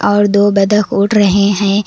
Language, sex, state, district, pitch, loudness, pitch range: Hindi, female, Karnataka, Koppal, 205 Hz, -11 LUFS, 200-205 Hz